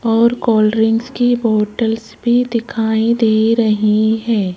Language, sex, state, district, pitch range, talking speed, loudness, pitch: Hindi, female, Rajasthan, Jaipur, 220-235 Hz, 130 wpm, -15 LUFS, 225 Hz